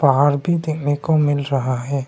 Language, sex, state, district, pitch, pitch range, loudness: Hindi, male, Arunachal Pradesh, Longding, 145 Hz, 135-150 Hz, -19 LUFS